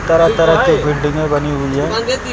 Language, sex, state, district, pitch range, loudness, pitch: Hindi, male, Uttar Pradesh, Lucknow, 145-165 Hz, -14 LUFS, 155 Hz